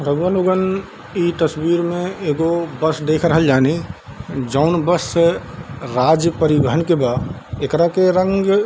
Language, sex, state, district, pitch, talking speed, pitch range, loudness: Hindi, male, Bihar, Darbhanga, 165 Hz, 145 wpm, 150-175 Hz, -17 LUFS